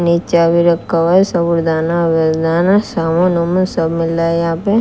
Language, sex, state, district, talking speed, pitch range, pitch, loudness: Hindi, female, Bihar, West Champaran, 175 wpm, 165-175 Hz, 170 Hz, -14 LUFS